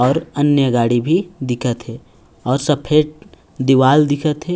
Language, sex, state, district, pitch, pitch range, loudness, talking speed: Chhattisgarhi, male, Chhattisgarh, Raigarh, 135 Hz, 125-150 Hz, -16 LUFS, 145 wpm